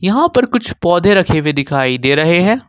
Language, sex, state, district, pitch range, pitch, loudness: Hindi, male, Jharkhand, Ranchi, 150-220 Hz, 175 Hz, -13 LUFS